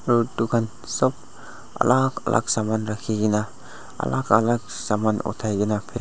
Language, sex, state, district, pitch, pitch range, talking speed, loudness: Nagamese, male, Nagaland, Dimapur, 110 Hz, 105-120 Hz, 110 wpm, -23 LUFS